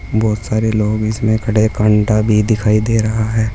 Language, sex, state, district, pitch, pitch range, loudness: Hindi, male, Uttar Pradesh, Saharanpur, 110 Hz, 105-110 Hz, -15 LUFS